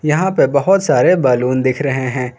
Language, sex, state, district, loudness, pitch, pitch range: Hindi, male, Jharkhand, Garhwa, -14 LUFS, 135 Hz, 125-160 Hz